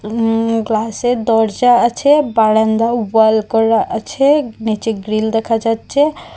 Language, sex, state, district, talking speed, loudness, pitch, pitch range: Bengali, female, Assam, Hailakandi, 115 wpm, -14 LUFS, 225 Hz, 220-240 Hz